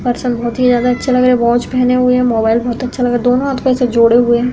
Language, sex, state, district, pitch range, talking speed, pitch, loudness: Hindi, female, Uttar Pradesh, Hamirpur, 240-250 Hz, 330 wpm, 245 Hz, -13 LUFS